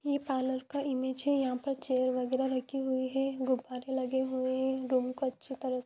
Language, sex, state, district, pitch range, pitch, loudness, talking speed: Hindi, female, Jharkhand, Jamtara, 255-265 Hz, 260 Hz, -33 LUFS, 215 wpm